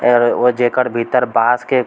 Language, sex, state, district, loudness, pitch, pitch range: Bhojpuri, male, Bihar, East Champaran, -15 LUFS, 120 Hz, 120-125 Hz